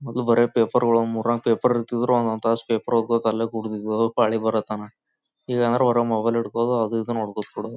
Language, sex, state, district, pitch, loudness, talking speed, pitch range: Kannada, male, Karnataka, Gulbarga, 115 Hz, -22 LUFS, 185 wpm, 110-120 Hz